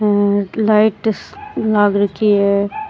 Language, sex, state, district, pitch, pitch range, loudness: Rajasthani, female, Rajasthan, Churu, 210 Hz, 200-220 Hz, -15 LUFS